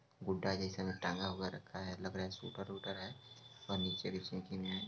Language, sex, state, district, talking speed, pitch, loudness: Hindi, male, Bihar, Sitamarhi, 210 wpm, 95 Hz, -42 LUFS